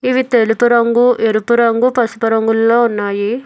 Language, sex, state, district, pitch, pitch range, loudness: Telugu, female, Telangana, Hyderabad, 235 Hz, 225-240 Hz, -13 LUFS